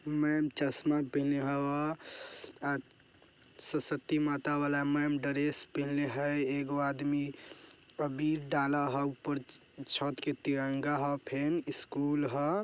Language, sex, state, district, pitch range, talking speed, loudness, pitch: Bajjika, male, Bihar, Vaishali, 140-150 Hz, 115 wpm, -33 LUFS, 145 Hz